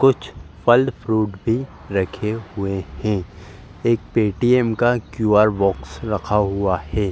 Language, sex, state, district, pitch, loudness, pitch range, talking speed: Hindi, male, Uttar Pradesh, Jalaun, 105 Hz, -20 LUFS, 95-115 Hz, 125 wpm